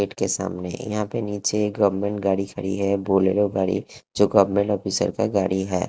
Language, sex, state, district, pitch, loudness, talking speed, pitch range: Hindi, male, Haryana, Rohtak, 100 Hz, -23 LUFS, 175 wpm, 95-105 Hz